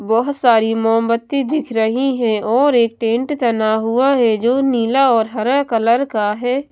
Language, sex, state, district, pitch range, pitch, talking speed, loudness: Hindi, female, Himachal Pradesh, Shimla, 225-270 Hz, 235 Hz, 170 wpm, -16 LUFS